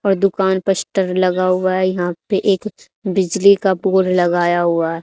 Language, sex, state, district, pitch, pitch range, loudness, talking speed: Hindi, female, Haryana, Charkhi Dadri, 190 Hz, 180-195 Hz, -16 LUFS, 155 wpm